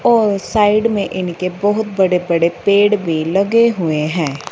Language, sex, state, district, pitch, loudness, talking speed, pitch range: Hindi, female, Punjab, Fazilka, 195 Hz, -15 LUFS, 145 wpm, 170-210 Hz